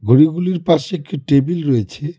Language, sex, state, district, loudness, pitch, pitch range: Bengali, male, West Bengal, Cooch Behar, -16 LUFS, 155 Hz, 140-175 Hz